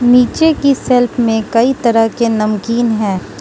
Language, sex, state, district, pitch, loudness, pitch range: Hindi, female, Manipur, Imphal West, 235 Hz, -13 LUFS, 220-250 Hz